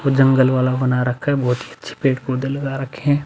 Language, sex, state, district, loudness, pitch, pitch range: Hindi, male, Uttar Pradesh, Budaun, -19 LUFS, 135 Hz, 130-135 Hz